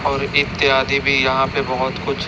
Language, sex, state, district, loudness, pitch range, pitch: Hindi, male, Chhattisgarh, Raipur, -17 LUFS, 130-140 Hz, 135 Hz